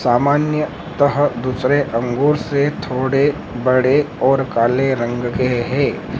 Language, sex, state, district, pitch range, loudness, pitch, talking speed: Hindi, male, Madhya Pradesh, Dhar, 125-145 Hz, -17 LUFS, 135 Hz, 115 wpm